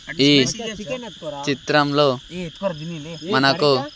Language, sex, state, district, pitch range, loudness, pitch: Telugu, male, Andhra Pradesh, Sri Satya Sai, 140-175 Hz, -19 LUFS, 150 Hz